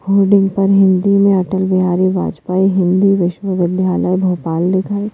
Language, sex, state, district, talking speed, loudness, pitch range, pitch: Hindi, female, Madhya Pradesh, Bhopal, 130 wpm, -14 LUFS, 185-195 Hz, 190 Hz